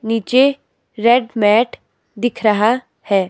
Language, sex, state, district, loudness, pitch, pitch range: Hindi, female, Himachal Pradesh, Shimla, -16 LUFS, 230 Hz, 215-245 Hz